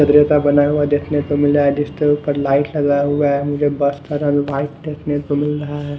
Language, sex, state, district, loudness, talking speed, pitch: Hindi, male, Punjab, Fazilka, -17 LUFS, 240 wpm, 145 Hz